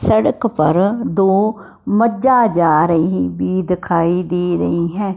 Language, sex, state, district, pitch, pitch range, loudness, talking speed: Hindi, male, Punjab, Fazilka, 180 Hz, 170-210 Hz, -16 LUFS, 130 wpm